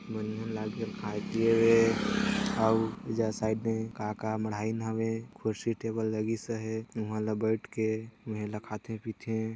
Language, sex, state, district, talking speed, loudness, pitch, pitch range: Hindi, male, Chhattisgarh, Sarguja, 140 wpm, -31 LUFS, 110 Hz, 110-115 Hz